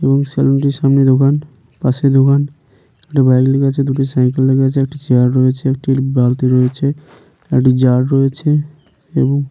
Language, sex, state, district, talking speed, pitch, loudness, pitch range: Bengali, male, West Bengal, Paschim Medinipur, 165 wpm, 135 Hz, -14 LUFS, 130-140 Hz